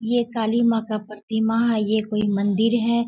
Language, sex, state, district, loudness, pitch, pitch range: Hindi, female, Bihar, Bhagalpur, -22 LUFS, 225 Hz, 215-235 Hz